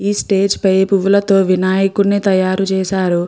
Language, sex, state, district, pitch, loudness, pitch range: Telugu, female, Andhra Pradesh, Guntur, 195 Hz, -14 LUFS, 190-200 Hz